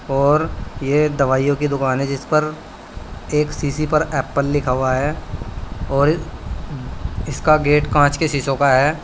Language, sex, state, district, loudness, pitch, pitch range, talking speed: Hindi, male, Uttar Pradesh, Saharanpur, -18 LUFS, 145 Hz, 135-150 Hz, 145 wpm